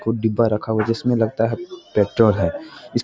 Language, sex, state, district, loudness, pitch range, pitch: Hindi, male, Bihar, Jamui, -20 LUFS, 110-115 Hz, 115 Hz